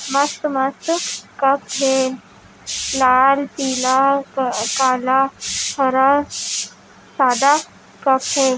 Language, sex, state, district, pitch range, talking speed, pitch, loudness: Chhattisgarhi, female, Chhattisgarh, Raigarh, 260-280 Hz, 75 wpm, 270 Hz, -18 LUFS